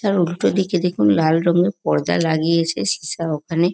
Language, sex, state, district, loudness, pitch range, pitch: Bengali, female, West Bengal, North 24 Parganas, -19 LUFS, 160-180 Hz, 165 Hz